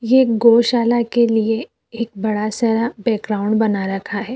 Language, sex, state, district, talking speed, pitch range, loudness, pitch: Hindi, female, Uttar Pradesh, Jyotiba Phule Nagar, 165 wpm, 215-235 Hz, -17 LUFS, 225 Hz